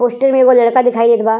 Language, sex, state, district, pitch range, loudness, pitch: Bhojpuri, female, Uttar Pradesh, Gorakhpur, 235-255 Hz, -11 LUFS, 245 Hz